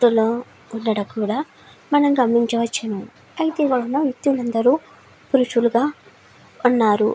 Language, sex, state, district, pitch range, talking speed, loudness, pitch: Telugu, female, Andhra Pradesh, Srikakulam, 225-275 Hz, 90 wpm, -20 LUFS, 240 Hz